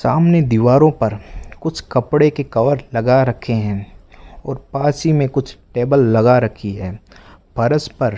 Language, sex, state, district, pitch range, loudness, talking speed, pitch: Hindi, male, Rajasthan, Bikaner, 110-140 Hz, -16 LUFS, 160 wpm, 125 Hz